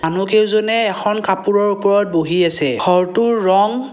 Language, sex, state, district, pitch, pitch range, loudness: Assamese, male, Assam, Kamrup Metropolitan, 200 Hz, 180-215 Hz, -15 LUFS